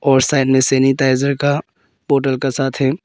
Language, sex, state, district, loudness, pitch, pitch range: Hindi, female, Arunachal Pradesh, Papum Pare, -16 LUFS, 135 Hz, 135-140 Hz